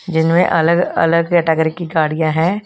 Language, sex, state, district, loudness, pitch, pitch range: Hindi, female, Punjab, Kapurthala, -15 LUFS, 165 Hz, 160-175 Hz